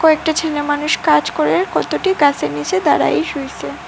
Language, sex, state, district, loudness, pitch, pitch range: Bengali, female, Assam, Hailakandi, -16 LUFS, 290 Hz, 215-320 Hz